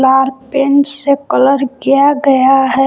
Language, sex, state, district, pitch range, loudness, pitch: Hindi, female, Jharkhand, Palamu, 265-280 Hz, -11 LUFS, 270 Hz